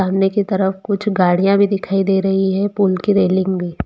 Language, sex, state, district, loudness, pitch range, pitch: Hindi, female, Jharkhand, Jamtara, -16 LUFS, 190-200 Hz, 195 Hz